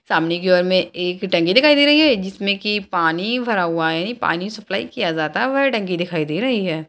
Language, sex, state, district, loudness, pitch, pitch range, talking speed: Hindi, female, Uttarakhand, Tehri Garhwal, -18 LUFS, 185 Hz, 170-225 Hz, 235 wpm